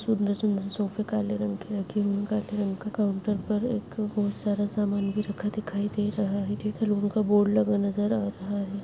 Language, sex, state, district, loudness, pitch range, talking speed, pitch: Hindi, female, Bihar, Araria, -28 LUFS, 200-210 Hz, 190 wpm, 205 Hz